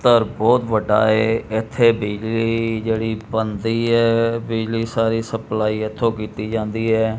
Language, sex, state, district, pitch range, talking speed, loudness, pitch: Punjabi, male, Punjab, Kapurthala, 110-115 Hz, 135 wpm, -19 LUFS, 110 Hz